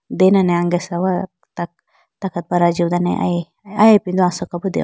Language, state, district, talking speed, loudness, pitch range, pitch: Idu Mishmi, Arunachal Pradesh, Lower Dibang Valley, 150 wpm, -17 LUFS, 175-190 Hz, 175 Hz